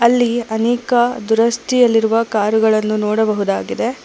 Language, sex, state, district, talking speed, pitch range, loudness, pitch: Kannada, female, Karnataka, Bangalore, 75 wpm, 220-240 Hz, -16 LUFS, 225 Hz